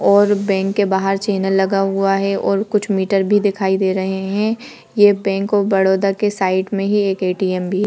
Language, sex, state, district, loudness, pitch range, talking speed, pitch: Hindi, female, Uttar Pradesh, Budaun, -17 LUFS, 190-205 Hz, 215 wpm, 195 Hz